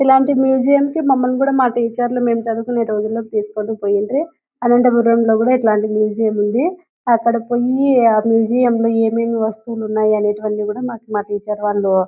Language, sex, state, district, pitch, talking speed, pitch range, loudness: Telugu, female, Andhra Pradesh, Anantapur, 230 Hz, 170 wpm, 215-250 Hz, -16 LUFS